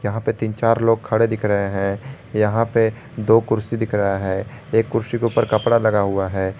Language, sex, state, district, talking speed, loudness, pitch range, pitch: Hindi, male, Jharkhand, Garhwa, 220 wpm, -20 LUFS, 100-115 Hz, 110 Hz